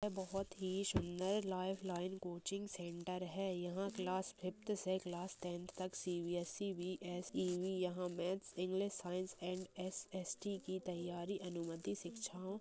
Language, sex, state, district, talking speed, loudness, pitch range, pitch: Hindi, female, Bihar, Jahanabad, 135 wpm, -44 LUFS, 180-190 Hz, 185 Hz